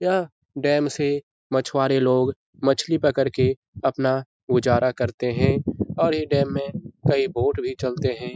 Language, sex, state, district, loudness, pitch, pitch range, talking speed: Hindi, male, Bihar, Lakhisarai, -23 LUFS, 135 Hz, 130-150 Hz, 160 wpm